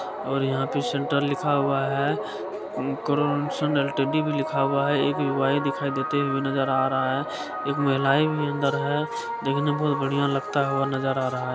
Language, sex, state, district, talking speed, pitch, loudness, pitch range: Maithili, male, Bihar, Supaul, 210 wpm, 140 Hz, -25 LUFS, 135-145 Hz